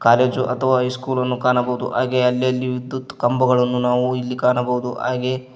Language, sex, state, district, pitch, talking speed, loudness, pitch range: Kannada, male, Karnataka, Koppal, 125 Hz, 130 wpm, -19 LUFS, 125-130 Hz